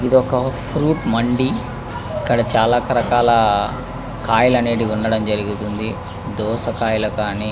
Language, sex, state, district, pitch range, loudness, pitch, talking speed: Telugu, male, Andhra Pradesh, Krishna, 110-125 Hz, -18 LUFS, 115 Hz, 80 wpm